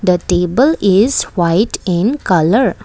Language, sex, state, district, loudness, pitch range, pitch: English, female, Assam, Kamrup Metropolitan, -13 LUFS, 175-225 Hz, 185 Hz